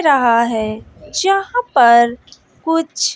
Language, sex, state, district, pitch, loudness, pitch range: Hindi, female, Bihar, West Champaran, 265 Hz, -15 LUFS, 235-355 Hz